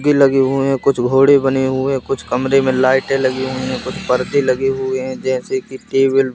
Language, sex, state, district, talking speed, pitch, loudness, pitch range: Hindi, male, Madhya Pradesh, Katni, 215 wpm, 130 Hz, -16 LUFS, 130-135 Hz